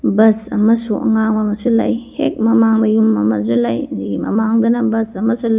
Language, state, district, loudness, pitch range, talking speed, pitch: Manipuri, Manipur, Imphal West, -15 LUFS, 210-230 Hz, 160 wpm, 220 Hz